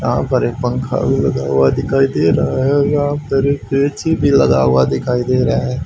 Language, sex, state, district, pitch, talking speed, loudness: Hindi, male, Haryana, Jhajjar, 130 Hz, 235 wpm, -15 LUFS